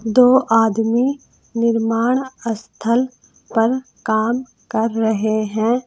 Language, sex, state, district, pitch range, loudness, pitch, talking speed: Hindi, female, Uttar Pradesh, Saharanpur, 225-250 Hz, -18 LUFS, 230 Hz, 90 wpm